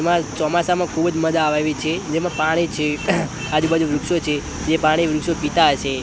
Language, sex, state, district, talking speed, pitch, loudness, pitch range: Gujarati, male, Gujarat, Gandhinagar, 200 wpm, 160 Hz, -19 LUFS, 155-170 Hz